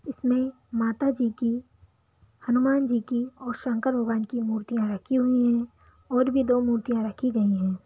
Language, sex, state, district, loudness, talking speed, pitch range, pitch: Bhojpuri, female, Bihar, Saran, -26 LUFS, 170 wpm, 230-255 Hz, 240 Hz